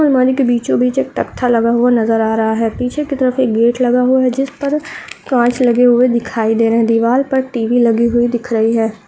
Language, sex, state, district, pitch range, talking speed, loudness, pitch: Hindi, female, Uttarakhand, Tehri Garhwal, 225-255 Hz, 240 wpm, -14 LUFS, 240 Hz